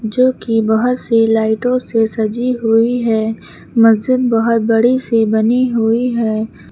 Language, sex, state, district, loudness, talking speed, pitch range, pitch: Hindi, female, Uttar Pradesh, Lucknow, -14 LUFS, 145 wpm, 225-245 Hz, 225 Hz